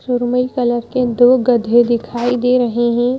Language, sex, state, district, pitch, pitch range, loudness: Hindi, female, Madhya Pradesh, Bhopal, 245 Hz, 240-250 Hz, -15 LUFS